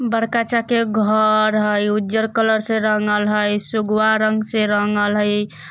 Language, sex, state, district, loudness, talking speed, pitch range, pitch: Bajjika, male, Bihar, Vaishali, -17 LUFS, 145 wpm, 210-220 Hz, 215 Hz